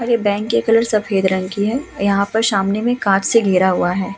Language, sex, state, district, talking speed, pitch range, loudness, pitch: Hindi, female, Uttar Pradesh, Hamirpur, 260 wpm, 195-230 Hz, -17 LUFS, 205 Hz